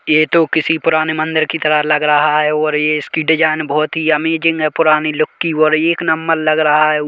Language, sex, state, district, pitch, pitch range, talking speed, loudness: Hindi, male, Chhattisgarh, Kabirdham, 155 Hz, 155-160 Hz, 220 wpm, -14 LUFS